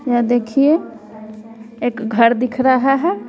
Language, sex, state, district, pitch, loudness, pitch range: Hindi, female, Bihar, West Champaran, 245 Hz, -16 LUFS, 225-265 Hz